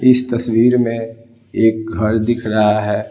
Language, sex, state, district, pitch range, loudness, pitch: Hindi, male, Bihar, Patna, 110-120 Hz, -16 LUFS, 115 Hz